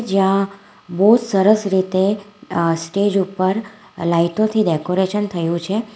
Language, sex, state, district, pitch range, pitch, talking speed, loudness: Gujarati, female, Gujarat, Valsad, 185-205 Hz, 195 Hz, 120 wpm, -18 LUFS